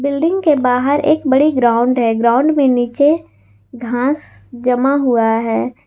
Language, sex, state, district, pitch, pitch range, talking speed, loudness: Hindi, female, Jharkhand, Palamu, 250 Hz, 235-285 Hz, 145 wpm, -14 LUFS